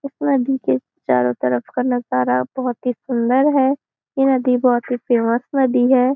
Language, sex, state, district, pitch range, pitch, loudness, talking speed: Hindi, female, Maharashtra, Nagpur, 235-265 Hz, 250 Hz, -18 LUFS, 175 wpm